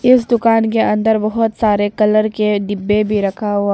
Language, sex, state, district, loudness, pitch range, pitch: Hindi, female, Arunachal Pradesh, Papum Pare, -15 LUFS, 205-225 Hz, 215 Hz